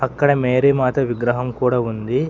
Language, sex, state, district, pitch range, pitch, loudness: Telugu, male, Telangana, Hyderabad, 120-135 Hz, 125 Hz, -18 LUFS